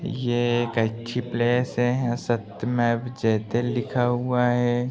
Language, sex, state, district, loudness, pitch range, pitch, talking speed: Hindi, male, Uttar Pradesh, Gorakhpur, -24 LUFS, 120-125 Hz, 120 Hz, 120 wpm